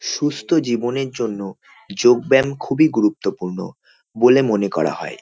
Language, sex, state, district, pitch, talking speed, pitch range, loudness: Bengali, male, West Bengal, North 24 Parganas, 120 Hz, 125 wpm, 100-140 Hz, -18 LUFS